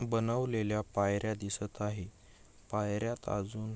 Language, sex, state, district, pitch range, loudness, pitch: Marathi, male, Maharashtra, Aurangabad, 100-110 Hz, -35 LUFS, 105 Hz